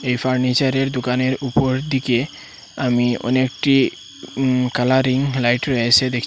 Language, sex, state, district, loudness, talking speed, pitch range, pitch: Bengali, male, Assam, Hailakandi, -18 LUFS, 125 wpm, 125-135 Hz, 130 Hz